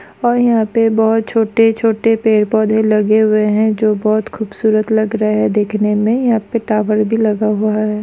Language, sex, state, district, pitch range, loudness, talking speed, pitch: Hindi, female, Chhattisgarh, Sukma, 215-225 Hz, -14 LUFS, 200 wpm, 220 Hz